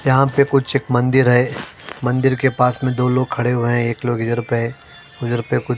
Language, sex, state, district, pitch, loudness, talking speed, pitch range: Hindi, male, Maharashtra, Mumbai Suburban, 125 Hz, -18 LUFS, 250 wpm, 120-130 Hz